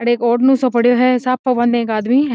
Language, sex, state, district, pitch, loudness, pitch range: Marwari, female, Rajasthan, Nagaur, 245 Hz, -15 LUFS, 240-255 Hz